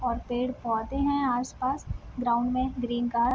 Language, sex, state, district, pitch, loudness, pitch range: Hindi, female, Bihar, Sitamarhi, 245 Hz, -29 LUFS, 240-255 Hz